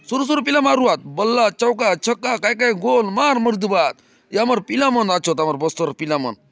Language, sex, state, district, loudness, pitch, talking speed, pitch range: Halbi, male, Chhattisgarh, Bastar, -18 LUFS, 235 Hz, 250 wpm, 165-255 Hz